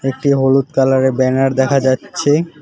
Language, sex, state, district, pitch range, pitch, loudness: Bengali, male, West Bengal, Alipurduar, 130-140 Hz, 135 Hz, -14 LUFS